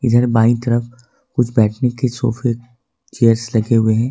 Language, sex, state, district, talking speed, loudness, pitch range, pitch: Hindi, male, Jharkhand, Ranchi, 175 wpm, -16 LUFS, 115-120 Hz, 120 Hz